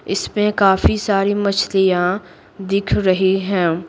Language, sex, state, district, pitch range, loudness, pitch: Hindi, female, Bihar, Patna, 185-200 Hz, -17 LUFS, 195 Hz